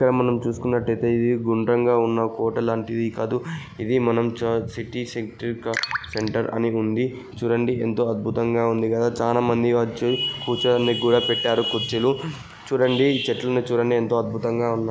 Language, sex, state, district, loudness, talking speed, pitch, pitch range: Telugu, male, Andhra Pradesh, Guntur, -22 LUFS, 135 wpm, 115 Hz, 115-120 Hz